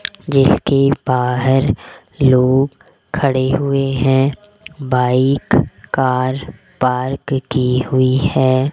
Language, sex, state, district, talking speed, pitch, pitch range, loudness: Hindi, female, Rajasthan, Jaipur, 80 wpm, 135 Hz, 130-140 Hz, -16 LUFS